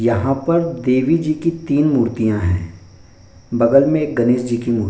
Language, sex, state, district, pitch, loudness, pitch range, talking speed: Hindi, male, Bihar, Bhagalpur, 120 Hz, -17 LUFS, 110-145 Hz, 195 wpm